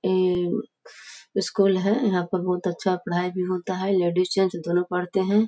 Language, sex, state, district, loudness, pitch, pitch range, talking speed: Hindi, female, Uttar Pradesh, Gorakhpur, -24 LUFS, 185 Hz, 180-195 Hz, 175 wpm